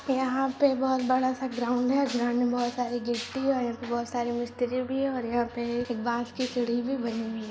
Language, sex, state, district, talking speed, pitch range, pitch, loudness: Hindi, female, Jharkhand, Jamtara, 240 wpm, 240-260 Hz, 245 Hz, -28 LUFS